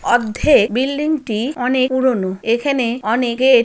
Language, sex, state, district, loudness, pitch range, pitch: Bengali, female, West Bengal, Malda, -17 LUFS, 230-260 Hz, 245 Hz